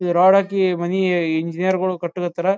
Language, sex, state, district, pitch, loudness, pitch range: Kannada, male, Karnataka, Bijapur, 180 Hz, -19 LUFS, 175-190 Hz